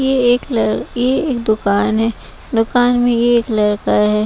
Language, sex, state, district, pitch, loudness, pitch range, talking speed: Hindi, female, Bihar, West Champaran, 235 Hz, -15 LUFS, 210-245 Hz, 185 wpm